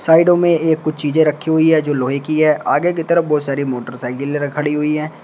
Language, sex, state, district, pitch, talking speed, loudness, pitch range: Hindi, male, Uttar Pradesh, Shamli, 150 Hz, 240 wpm, -16 LUFS, 145-160 Hz